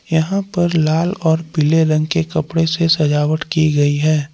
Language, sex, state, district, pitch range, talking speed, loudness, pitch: Hindi, male, Jharkhand, Palamu, 155-165 Hz, 180 wpm, -16 LUFS, 160 Hz